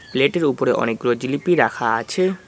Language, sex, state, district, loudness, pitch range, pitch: Bengali, male, West Bengal, Cooch Behar, -19 LUFS, 120-185 Hz, 140 Hz